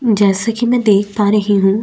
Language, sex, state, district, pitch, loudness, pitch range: Hindi, female, Chhattisgarh, Bastar, 210 Hz, -14 LUFS, 200-225 Hz